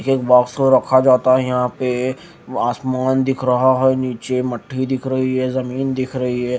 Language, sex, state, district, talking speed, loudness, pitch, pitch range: Hindi, male, Haryana, Jhajjar, 190 wpm, -17 LUFS, 130 Hz, 125-130 Hz